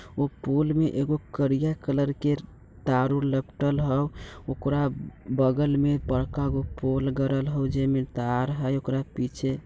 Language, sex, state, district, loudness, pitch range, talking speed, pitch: Bajjika, male, Bihar, Vaishali, -26 LUFS, 130-145 Hz, 150 wpm, 135 Hz